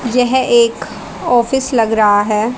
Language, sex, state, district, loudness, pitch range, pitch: Hindi, female, Haryana, Rohtak, -13 LUFS, 220-255 Hz, 240 Hz